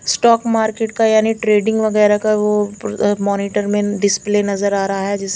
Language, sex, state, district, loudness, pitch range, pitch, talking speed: Hindi, female, Chandigarh, Chandigarh, -16 LUFS, 200-220 Hz, 210 Hz, 190 wpm